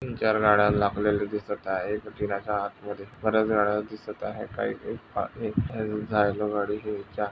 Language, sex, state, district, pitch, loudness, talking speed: Marathi, male, Maharashtra, Sindhudurg, 105 Hz, -27 LUFS, 130 wpm